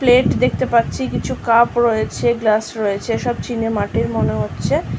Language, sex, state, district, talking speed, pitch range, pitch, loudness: Bengali, female, West Bengal, North 24 Parganas, 155 wpm, 220-240 Hz, 230 Hz, -18 LUFS